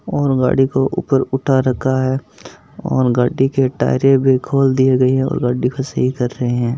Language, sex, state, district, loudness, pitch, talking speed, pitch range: Hindi, male, Rajasthan, Nagaur, -16 LUFS, 130 Hz, 205 wpm, 125-135 Hz